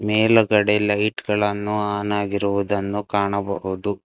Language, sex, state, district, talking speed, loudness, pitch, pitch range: Kannada, male, Karnataka, Bangalore, 90 wpm, -21 LUFS, 105 Hz, 100-105 Hz